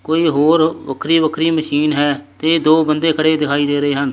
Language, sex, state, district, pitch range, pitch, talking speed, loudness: Punjabi, male, Punjab, Kapurthala, 145-160 Hz, 155 Hz, 205 wpm, -15 LUFS